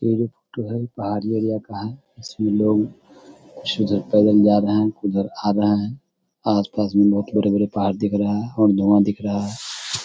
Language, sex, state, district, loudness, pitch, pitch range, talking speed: Hindi, male, Bihar, Samastipur, -20 LUFS, 105 Hz, 100-110 Hz, 135 wpm